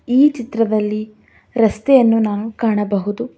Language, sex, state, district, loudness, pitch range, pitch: Kannada, female, Karnataka, Bangalore, -17 LUFS, 215-240 Hz, 225 Hz